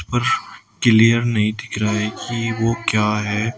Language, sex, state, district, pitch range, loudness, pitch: Hindi, male, Uttar Pradesh, Shamli, 105-115 Hz, -19 LUFS, 110 Hz